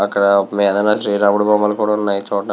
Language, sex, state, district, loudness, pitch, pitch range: Telugu, male, Andhra Pradesh, Visakhapatnam, -16 LUFS, 100 Hz, 100-105 Hz